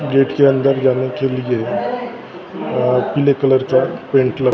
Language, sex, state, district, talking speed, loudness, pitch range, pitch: Hindi, male, Maharashtra, Gondia, 145 wpm, -16 LUFS, 130-140 Hz, 135 Hz